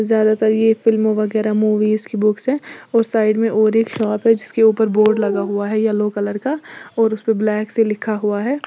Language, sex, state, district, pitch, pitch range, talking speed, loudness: Hindi, female, Uttar Pradesh, Lalitpur, 215 Hz, 215-225 Hz, 215 wpm, -17 LUFS